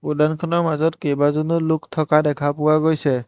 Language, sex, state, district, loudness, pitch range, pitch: Assamese, male, Assam, Hailakandi, -19 LUFS, 145-160 Hz, 155 Hz